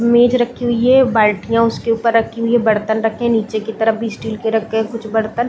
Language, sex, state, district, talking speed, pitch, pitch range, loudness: Hindi, female, Chhattisgarh, Bilaspur, 240 wpm, 225 Hz, 220-235 Hz, -16 LUFS